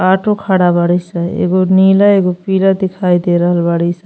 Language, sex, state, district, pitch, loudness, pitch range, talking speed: Bhojpuri, female, Uttar Pradesh, Ghazipur, 185 Hz, -12 LUFS, 175-190 Hz, 190 wpm